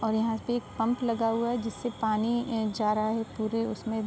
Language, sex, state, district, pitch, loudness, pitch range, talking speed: Hindi, female, Uttar Pradesh, Muzaffarnagar, 225 Hz, -29 LUFS, 220-235 Hz, 235 wpm